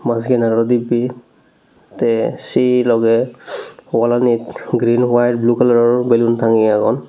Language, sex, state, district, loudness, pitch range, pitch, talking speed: Chakma, male, Tripura, Dhalai, -15 LUFS, 115-120 Hz, 120 Hz, 125 wpm